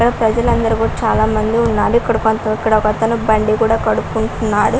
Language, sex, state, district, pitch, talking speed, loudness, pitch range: Telugu, female, Andhra Pradesh, Guntur, 225 Hz, 140 wpm, -15 LUFS, 215-230 Hz